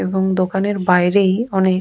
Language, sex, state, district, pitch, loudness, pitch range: Bengali, female, West Bengal, Purulia, 190 Hz, -17 LUFS, 185-195 Hz